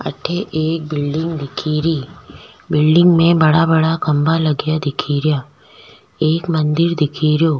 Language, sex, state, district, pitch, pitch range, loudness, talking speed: Rajasthani, female, Rajasthan, Nagaur, 155 Hz, 150-165 Hz, -16 LUFS, 110 wpm